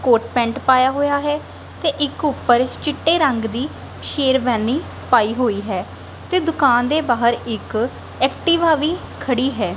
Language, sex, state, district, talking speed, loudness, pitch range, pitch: Punjabi, female, Punjab, Kapurthala, 145 wpm, -19 LUFS, 240-300 Hz, 260 Hz